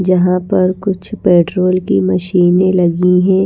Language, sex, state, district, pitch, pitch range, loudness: Hindi, female, Bihar, Patna, 185 Hz, 180-185 Hz, -13 LUFS